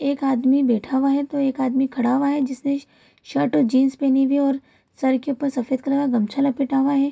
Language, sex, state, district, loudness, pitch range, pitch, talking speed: Hindi, female, Bihar, Kishanganj, -21 LUFS, 265-280 Hz, 270 Hz, 255 wpm